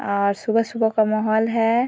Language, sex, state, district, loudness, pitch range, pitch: Hindi, female, Bihar, Vaishali, -20 LUFS, 215-225 Hz, 220 Hz